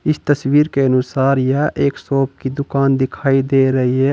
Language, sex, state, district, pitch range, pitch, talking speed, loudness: Hindi, male, Uttar Pradesh, Saharanpur, 130-140 Hz, 135 Hz, 190 wpm, -16 LUFS